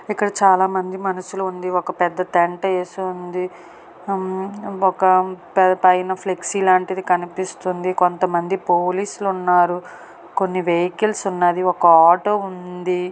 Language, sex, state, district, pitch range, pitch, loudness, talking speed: Telugu, female, Andhra Pradesh, Srikakulam, 180-190 Hz, 185 Hz, -19 LUFS, 110 wpm